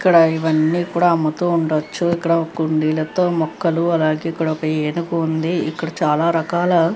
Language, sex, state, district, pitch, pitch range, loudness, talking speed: Telugu, female, Andhra Pradesh, Krishna, 165 Hz, 155-170 Hz, -18 LUFS, 140 wpm